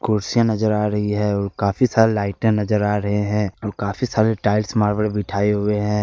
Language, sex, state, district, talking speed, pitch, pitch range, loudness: Hindi, male, Jharkhand, Ranchi, 210 wpm, 105 Hz, 105-110 Hz, -20 LUFS